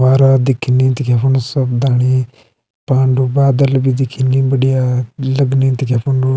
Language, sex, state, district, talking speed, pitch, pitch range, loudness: Garhwali, male, Uttarakhand, Uttarkashi, 140 wpm, 130 Hz, 130-135 Hz, -14 LUFS